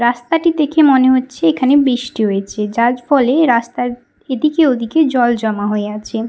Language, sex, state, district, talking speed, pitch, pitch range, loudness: Bengali, female, West Bengal, Paschim Medinipur, 160 wpm, 250 Hz, 230-285 Hz, -14 LUFS